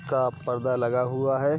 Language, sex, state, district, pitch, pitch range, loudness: Hindi, male, Uttar Pradesh, Gorakhpur, 130 Hz, 125-135 Hz, -26 LUFS